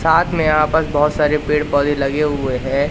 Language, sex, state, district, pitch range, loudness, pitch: Hindi, male, Madhya Pradesh, Katni, 145-155 Hz, -17 LUFS, 150 Hz